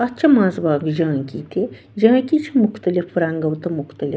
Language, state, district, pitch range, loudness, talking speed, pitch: Kashmiri, Punjab, Kapurthala, 155-240 Hz, -19 LUFS, 160 wpm, 175 Hz